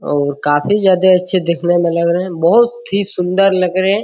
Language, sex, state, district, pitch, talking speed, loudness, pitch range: Hindi, male, Bihar, Araria, 185 Hz, 220 wpm, -14 LUFS, 170-195 Hz